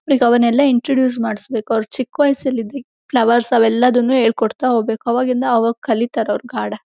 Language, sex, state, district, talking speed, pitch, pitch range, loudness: Kannada, female, Karnataka, Shimoga, 130 wpm, 240 Hz, 230-255 Hz, -16 LUFS